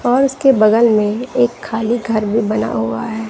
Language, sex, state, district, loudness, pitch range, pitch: Hindi, female, Bihar, West Champaran, -15 LUFS, 215-245 Hz, 225 Hz